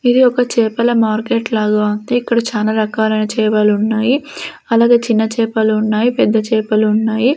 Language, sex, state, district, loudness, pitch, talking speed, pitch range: Telugu, female, Andhra Pradesh, Sri Satya Sai, -14 LUFS, 220 Hz, 140 wpm, 215-240 Hz